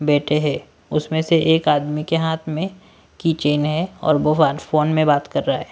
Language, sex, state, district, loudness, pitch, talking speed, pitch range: Hindi, male, Delhi, New Delhi, -19 LUFS, 155 Hz, 210 wpm, 150-160 Hz